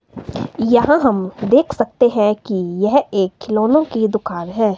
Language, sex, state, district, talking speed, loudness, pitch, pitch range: Hindi, female, Himachal Pradesh, Shimla, 150 wpm, -16 LUFS, 220 Hz, 200-245 Hz